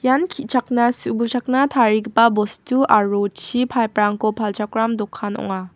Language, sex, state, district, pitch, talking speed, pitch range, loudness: Garo, female, Meghalaya, West Garo Hills, 225 Hz, 125 wpm, 210-250 Hz, -19 LUFS